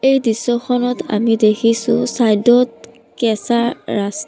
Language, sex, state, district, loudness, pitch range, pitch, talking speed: Assamese, female, Assam, Sonitpur, -16 LUFS, 215-245 Hz, 230 Hz, 110 wpm